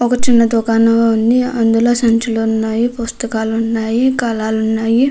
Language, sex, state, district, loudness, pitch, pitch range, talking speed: Telugu, female, Andhra Pradesh, Krishna, -14 LUFS, 230 Hz, 225-240 Hz, 130 wpm